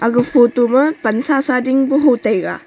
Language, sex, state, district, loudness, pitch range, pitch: Wancho, female, Arunachal Pradesh, Longding, -14 LUFS, 240-275 Hz, 255 Hz